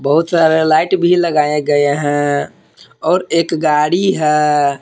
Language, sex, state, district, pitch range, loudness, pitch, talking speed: Hindi, male, Jharkhand, Palamu, 145-165 Hz, -14 LUFS, 150 Hz, 135 wpm